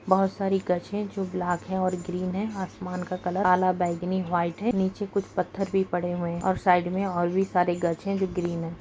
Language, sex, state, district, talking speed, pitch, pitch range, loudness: Hindi, female, Uttar Pradesh, Hamirpur, 260 wpm, 185 Hz, 175-195 Hz, -27 LUFS